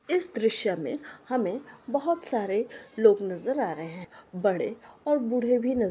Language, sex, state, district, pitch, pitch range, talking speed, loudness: Hindi, female, Bihar, Araria, 245 Hz, 205-270 Hz, 195 wpm, -28 LUFS